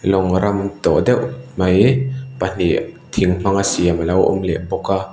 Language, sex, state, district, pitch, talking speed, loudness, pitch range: Mizo, male, Mizoram, Aizawl, 95 Hz, 175 wpm, -17 LUFS, 90-110 Hz